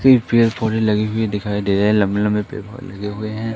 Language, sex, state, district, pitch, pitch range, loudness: Hindi, male, Madhya Pradesh, Katni, 105 Hz, 105-115 Hz, -18 LUFS